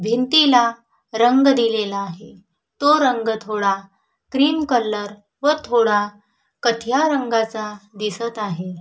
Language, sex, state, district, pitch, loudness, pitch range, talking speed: Marathi, female, Maharashtra, Sindhudurg, 230 Hz, -19 LUFS, 210-255 Hz, 95 wpm